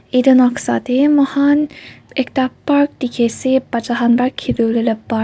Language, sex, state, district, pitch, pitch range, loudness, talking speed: Nagamese, female, Nagaland, Kohima, 255 Hz, 235-275 Hz, -16 LUFS, 195 wpm